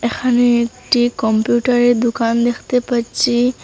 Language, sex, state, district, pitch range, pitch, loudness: Bengali, female, Assam, Hailakandi, 235-245 Hz, 240 Hz, -16 LUFS